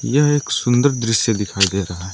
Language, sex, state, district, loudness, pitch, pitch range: Hindi, male, Arunachal Pradesh, Lower Dibang Valley, -17 LUFS, 115 Hz, 100-140 Hz